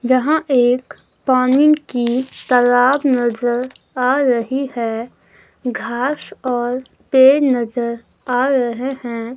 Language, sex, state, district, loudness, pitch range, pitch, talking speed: Hindi, female, Himachal Pradesh, Shimla, -17 LUFS, 240-265 Hz, 250 Hz, 105 wpm